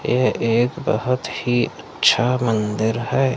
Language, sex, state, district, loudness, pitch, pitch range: Hindi, male, Madhya Pradesh, Umaria, -20 LUFS, 120 Hz, 110-125 Hz